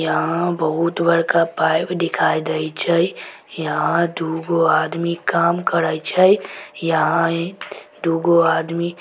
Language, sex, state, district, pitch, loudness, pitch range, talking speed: Maithili, female, Bihar, Samastipur, 170 Hz, -19 LUFS, 160-170 Hz, 135 wpm